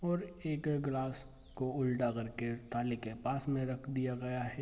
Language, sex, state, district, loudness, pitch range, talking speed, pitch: Hindi, male, Bihar, East Champaran, -37 LUFS, 120-135 Hz, 195 wpm, 130 Hz